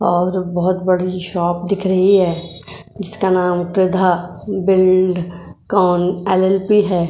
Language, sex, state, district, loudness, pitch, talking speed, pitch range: Hindi, female, Goa, North and South Goa, -16 LUFS, 185 Hz, 110 wpm, 175-190 Hz